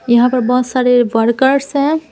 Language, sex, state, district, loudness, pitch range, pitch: Hindi, female, Bihar, Patna, -13 LUFS, 245-275 Hz, 250 Hz